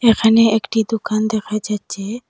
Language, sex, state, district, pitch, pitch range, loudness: Bengali, female, Assam, Hailakandi, 220 Hz, 215-225 Hz, -17 LUFS